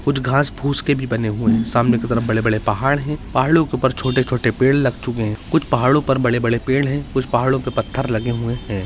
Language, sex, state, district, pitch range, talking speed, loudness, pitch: Hindi, male, Uttarakhand, Uttarkashi, 115-135 Hz, 230 wpm, -18 LUFS, 125 Hz